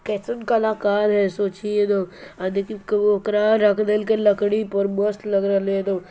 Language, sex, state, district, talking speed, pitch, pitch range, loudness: Magahi, male, Bihar, Jamui, 175 wpm, 205 Hz, 200-210 Hz, -21 LUFS